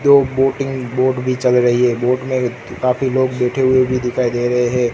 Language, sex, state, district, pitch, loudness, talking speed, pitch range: Hindi, male, Gujarat, Gandhinagar, 125 Hz, -16 LUFS, 205 wpm, 125-130 Hz